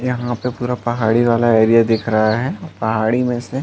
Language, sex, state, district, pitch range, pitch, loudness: Hindi, male, Chhattisgarh, Balrampur, 110-125 Hz, 120 Hz, -17 LUFS